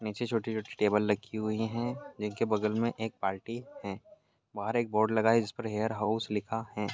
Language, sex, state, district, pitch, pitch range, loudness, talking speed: Hindi, male, Jharkhand, Jamtara, 110 Hz, 105-115 Hz, -32 LUFS, 200 wpm